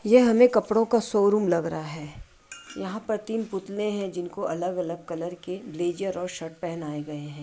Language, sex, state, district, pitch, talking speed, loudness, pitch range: Hindi, female, Bihar, Madhepura, 180 Hz, 185 wpm, -26 LUFS, 165-210 Hz